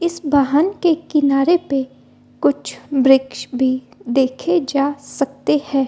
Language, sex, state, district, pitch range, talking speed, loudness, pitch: Hindi, female, Bihar, Gopalganj, 260-300 Hz, 135 wpm, -18 LUFS, 275 Hz